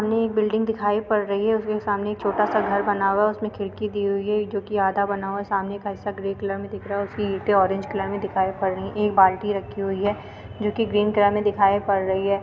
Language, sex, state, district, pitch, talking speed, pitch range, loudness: Hindi, female, Uttar Pradesh, Varanasi, 205 Hz, 290 wpm, 195-210 Hz, -23 LUFS